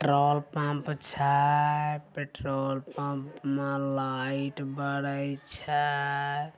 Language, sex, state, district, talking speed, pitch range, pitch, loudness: Angika, male, Bihar, Begusarai, 100 wpm, 140-145 Hz, 140 Hz, -29 LUFS